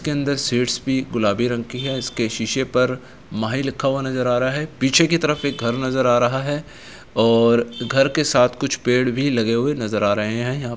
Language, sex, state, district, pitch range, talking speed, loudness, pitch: Hindi, male, Uttar Pradesh, Etah, 120-135 Hz, 250 wpm, -20 LUFS, 125 Hz